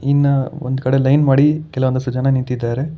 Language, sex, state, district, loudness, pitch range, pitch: Kannada, male, Karnataka, Bangalore, -16 LUFS, 130-140 Hz, 135 Hz